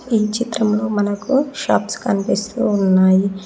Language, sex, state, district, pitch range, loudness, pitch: Telugu, female, Telangana, Mahabubabad, 195-240 Hz, -18 LUFS, 210 Hz